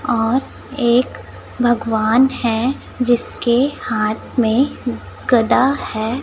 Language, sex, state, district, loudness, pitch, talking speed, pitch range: Hindi, female, Chhattisgarh, Raipur, -17 LUFS, 240 Hz, 85 wpm, 230-255 Hz